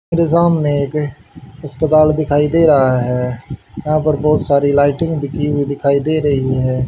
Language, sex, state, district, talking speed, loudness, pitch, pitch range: Hindi, male, Haryana, Rohtak, 175 wpm, -15 LUFS, 145 Hz, 135-155 Hz